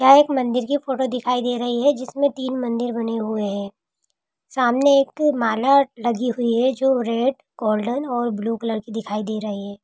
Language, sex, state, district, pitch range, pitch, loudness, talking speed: Hindi, female, Bihar, Saran, 225-265 Hz, 245 Hz, -21 LUFS, 195 wpm